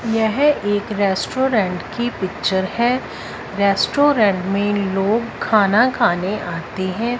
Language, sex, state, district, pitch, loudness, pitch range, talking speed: Hindi, female, Punjab, Fazilka, 205 Hz, -18 LUFS, 195-240 Hz, 110 wpm